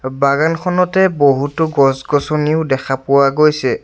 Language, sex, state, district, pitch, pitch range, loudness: Assamese, male, Assam, Sonitpur, 145 Hz, 135-160 Hz, -14 LUFS